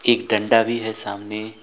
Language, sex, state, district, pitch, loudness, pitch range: Hindi, male, West Bengal, Alipurduar, 110 Hz, -21 LUFS, 105-115 Hz